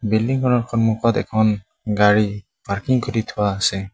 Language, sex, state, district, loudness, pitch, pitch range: Assamese, male, Assam, Sonitpur, -20 LUFS, 110 Hz, 105-115 Hz